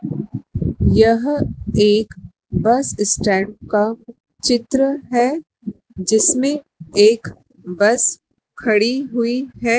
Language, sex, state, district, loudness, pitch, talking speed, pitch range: Hindi, male, Madhya Pradesh, Dhar, -17 LUFS, 230 Hz, 80 wpm, 210-255 Hz